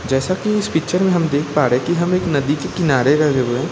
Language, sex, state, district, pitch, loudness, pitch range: Hindi, male, Chhattisgarh, Raipur, 155 Hz, -17 LUFS, 140-180 Hz